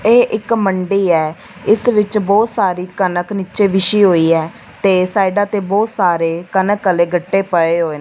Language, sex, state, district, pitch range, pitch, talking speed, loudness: Punjabi, female, Punjab, Fazilka, 175-205 Hz, 195 Hz, 180 wpm, -15 LUFS